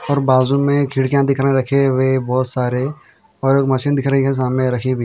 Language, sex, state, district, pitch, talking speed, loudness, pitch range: Hindi, male, Haryana, Jhajjar, 135 Hz, 215 wpm, -16 LUFS, 130-140 Hz